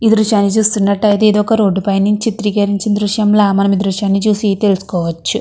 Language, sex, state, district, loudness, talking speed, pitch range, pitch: Telugu, female, Andhra Pradesh, Krishna, -13 LUFS, 165 wpm, 200-210 Hz, 205 Hz